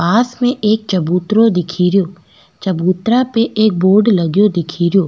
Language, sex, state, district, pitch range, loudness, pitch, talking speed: Rajasthani, female, Rajasthan, Nagaur, 180-220 Hz, -14 LUFS, 195 Hz, 130 wpm